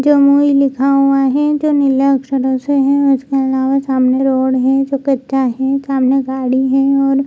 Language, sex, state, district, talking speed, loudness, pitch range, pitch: Hindi, female, Bihar, Jamui, 180 wpm, -13 LUFS, 265-275 Hz, 270 Hz